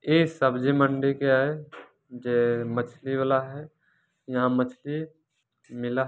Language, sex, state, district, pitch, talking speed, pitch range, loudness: Hindi, male, Bihar, Jamui, 135 Hz, 130 wpm, 125-150 Hz, -26 LUFS